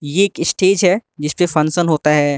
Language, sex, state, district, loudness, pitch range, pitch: Hindi, male, Arunachal Pradesh, Lower Dibang Valley, -16 LUFS, 150-185 Hz, 170 Hz